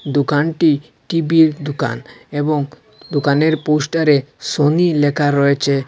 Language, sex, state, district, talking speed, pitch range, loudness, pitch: Bengali, male, Assam, Hailakandi, 110 wpm, 140-155 Hz, -16 LUFS, 145 Hz